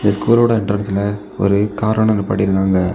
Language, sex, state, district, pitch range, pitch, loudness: Tamil, male, Tamil Nadu, Kanyakumari, 100-110 Hz, 100 Hz, -16 LUFS